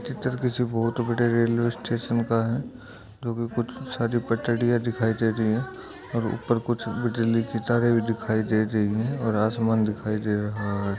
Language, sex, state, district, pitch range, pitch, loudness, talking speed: Hindi, male, Uttar Pradesh, Etah, 110-120 Hz, 115 Hz, -25 LUFS, 190 wpm